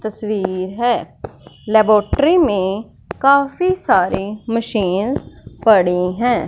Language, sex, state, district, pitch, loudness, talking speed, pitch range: Hindi, female, Punjab, Fazilka, 215 Hz, -16 LUFS, 85 wpm, 195-270 Hz